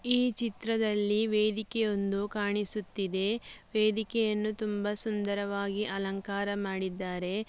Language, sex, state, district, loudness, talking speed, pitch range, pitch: Kannada, female, Karnataka, Dakshina Kannada, -31 LUFS, 70 wpm, 200-220 Hz, 210 Hz